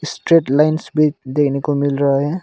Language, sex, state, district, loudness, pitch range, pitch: Hindi, male, Arunachal Pradesh, Longding, -16 LUFS, 140-155 Hz, 145 Hz